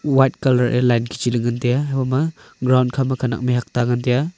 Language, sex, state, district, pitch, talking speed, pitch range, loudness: Wancho, male, Arunachal Pradesh, Longding, 125 Hz, 190 wpm, 120-135 Hz, -19 LUFS